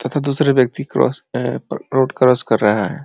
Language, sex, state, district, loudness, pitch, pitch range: Hindi, male, Uttar Pradesh, Ghazipur, -17 LUFS, 130 Hz, 120-140 Hz